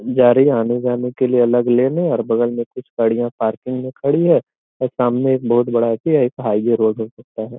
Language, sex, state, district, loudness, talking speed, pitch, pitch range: Hindi, male, Bihar, Gopalganj, -17 LUFS, 260 wpm, 120 Hz, 115-130 Hz